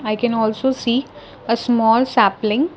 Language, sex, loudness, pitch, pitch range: English, female, -18 LUFS, 235 Hz, 220-255 Hz